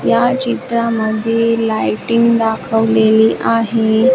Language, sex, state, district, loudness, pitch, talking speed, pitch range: Marathi, female, Maharashtra, Washim, -14 LUFS, 225 Hz, 70 wpm, 220-230 Hz